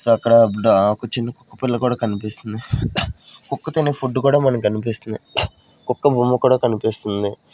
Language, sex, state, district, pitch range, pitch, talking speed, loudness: Telugu, male, Andhra Pradesh, Sri Satya Sai, 110-130 Hz, 120 Hz, 150 wpm, -19 LUFS